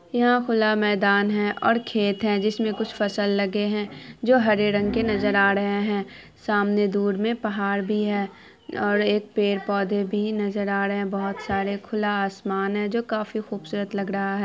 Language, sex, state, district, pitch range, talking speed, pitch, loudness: Hindi, female, Bihar, Araria, 200-215 Hz, 185 wpm, 205 Hz, -23 LUFS